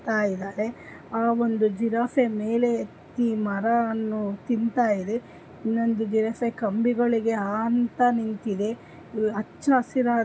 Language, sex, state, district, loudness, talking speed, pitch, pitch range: Kannada, female, Karnataka, Dharwad, -25 LUFS, 80 wpm, 225 Hz, 215-235 Hz